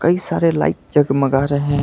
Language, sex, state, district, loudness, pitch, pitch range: Hindi, male, Karnataka, Bangalore, -17 LUFS, 145 Hz, 140-165 Hz